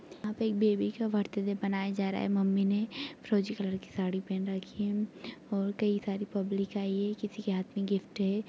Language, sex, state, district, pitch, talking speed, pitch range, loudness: Hindi, female, Chhattisgarh, Raigarh, 200 Hz, 220 wpm, 195-210 Hz, -32 LUFS